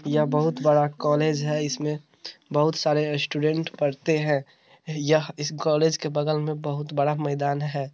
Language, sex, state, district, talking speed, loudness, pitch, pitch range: Hindi, male, Bihar, Araria, 160 wpm, -24 LUFS, 150 Hz, 145-155 Hz